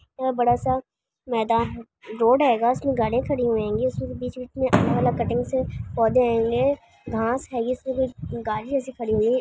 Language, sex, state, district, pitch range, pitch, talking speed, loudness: Hindi, female, Maharashtra, Solapur, 230-260 Hz, 245 Hz, 165 wpm, -23 LUFS